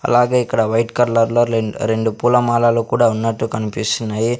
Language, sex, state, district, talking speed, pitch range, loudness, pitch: Telugu, male, Andhra Pradesh, Sri Satya Sai, 135 wpm, 110-120 Hz, -17 LUFS, 115 Hz